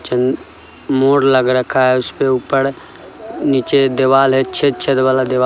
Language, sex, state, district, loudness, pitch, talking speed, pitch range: Hindi, male, Bihar, Sitamarhi, -14 LUFS, 130 Hz, 130 wpm, 130-135 Hz